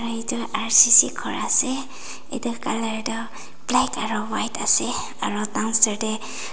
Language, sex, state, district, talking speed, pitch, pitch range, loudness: Nagamese, female, Nagaland, Dimapur, 140 wpm, 225 Hz, 220-240 Hz, -21 LUFS